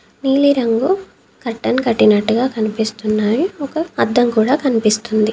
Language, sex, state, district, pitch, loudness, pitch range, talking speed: Telugu, female, Telangana, Komaram Bheem, 235 Hz, -16 LUFS, 220-270 Hz, 90 wpm